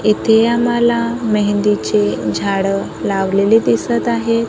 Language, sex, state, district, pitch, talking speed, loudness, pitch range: Marathi, female, Maharashtra, Gondia, 215 Hz, 95 wpm, -15 LUFS, 195-235 Hz